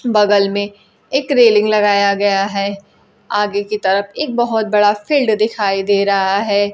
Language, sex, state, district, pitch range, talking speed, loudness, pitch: Hindi, female, Bihar, Kaimur, 200-215 Hz, 160 wpm, -15 LUFS, 205 Hz